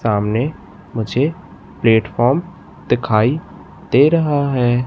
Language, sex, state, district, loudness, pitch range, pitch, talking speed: Hindi, male, Madhya Pradesh, Katni, -17 LUFS, 110-145 Hz, 125 Hz, 85 wpm